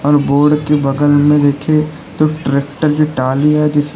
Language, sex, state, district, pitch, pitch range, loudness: Hindi, male, Uttar Pradesh, Lalitpur, 145 Hz, 145-150 Hz, -13 LUFS